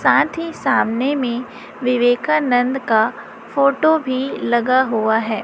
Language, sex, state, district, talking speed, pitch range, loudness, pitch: Hindi, female, Chhattisgarh, Raipur, 120 wpm, 235-275 Hz, -18 LUFS, 250 Hz